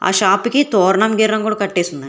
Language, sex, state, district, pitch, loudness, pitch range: Telugu, female, Telangana, Hyderabad, 200 Hz, -15 LUFS, 185-220 Hz